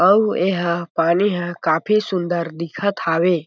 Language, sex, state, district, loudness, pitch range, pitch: Chhattisgarhi, male, Chhattisgarh, Jashpur, -19 LUFS, 170-195 Hz, 175 Hz